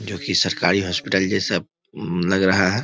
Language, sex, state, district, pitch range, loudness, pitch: Hindi, male, Bihar, East Champaran, 90-100 Hz, -20 LUFS, 95 Hz